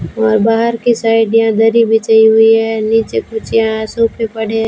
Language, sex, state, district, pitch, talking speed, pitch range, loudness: Hindi, female, Rajasthan, Bikaner, 225 Hz, 180 wpm, 220-230 Hz, -12 LUFS